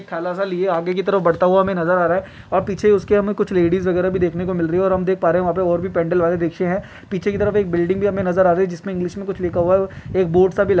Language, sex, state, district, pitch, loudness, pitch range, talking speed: Hindi, male, Chhattisgarh, Kabirdham, 185 Hz, -18 LUFS, 175-195 Hz, 325 wpm